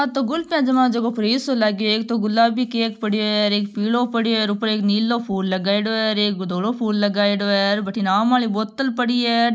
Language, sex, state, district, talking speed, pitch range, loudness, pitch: Marwari, female, Rajasthan, Nagaur, 225 wpm, 205-235 Hz, -20 LUFS, 220 Hz